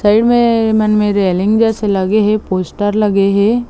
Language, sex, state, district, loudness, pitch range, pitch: Chhattisgarhi, female, Chhattisgarh, Bilaspur, -13 LUFS, 200-220 Hz, 210 Hz